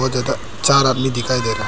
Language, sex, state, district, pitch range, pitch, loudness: Hindi, male, Arunachal Pradesh, Papum Pare, 125-130 Hz, 130 Hz, -17 LUFS